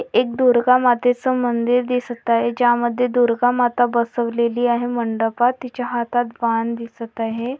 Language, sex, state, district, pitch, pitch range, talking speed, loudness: Marathi, female, Maharashtra, Pune, 240 Hz, 235-245 Hz, 140 wpm, -19 LUFS